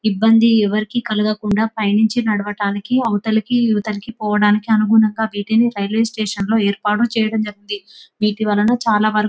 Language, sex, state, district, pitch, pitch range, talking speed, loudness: Telugu, female, Telangana, Nalgonda, 215 Hz, 210-225 Hz, 130 wpm, -17 LUFS